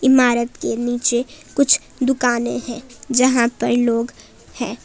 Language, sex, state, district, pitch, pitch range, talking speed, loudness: Hindi, female, Jharkhand, Palamu, 245 Hz, 240-260 Hz, 125 wpm, -18 LUFS